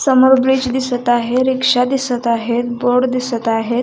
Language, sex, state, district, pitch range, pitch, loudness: Marathi, female, Maharashtra, Sindhudurg, 240-260 Hz, 250 Hz, -15 LUFS